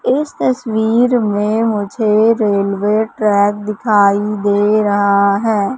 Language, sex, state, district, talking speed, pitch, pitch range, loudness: Hindi, female, Madhya Pradesh, Katni, 105 wpm, 210 Hz, 205-225 Hz, -14 LUFS